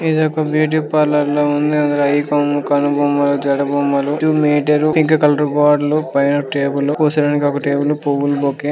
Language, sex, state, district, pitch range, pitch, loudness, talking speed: Telugu, male, Andhra Pradesh, Krishna, 145-150 Hz, 145 Hz, -15 LUFS, 130 wpm